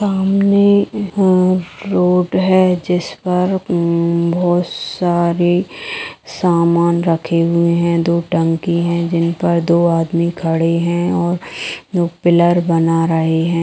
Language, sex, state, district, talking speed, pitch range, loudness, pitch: Magahi, female, Bihar, Gaya, 70 wpm, 170-185 Hz, -15 LUFS, 170 Hz